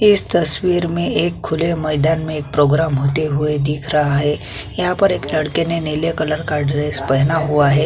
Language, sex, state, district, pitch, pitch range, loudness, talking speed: Hindi, male, Chhattisgarh, Kabirdham, 155 Hz, 145-165 Hz, -17 LUFS, 200 wpm